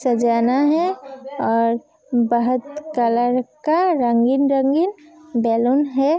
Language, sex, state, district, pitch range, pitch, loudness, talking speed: Hindi, female, Uttar Pradesh, Hamirpur, 235-305 Hz, 270 Hz, -19 LUFS, 95 wpm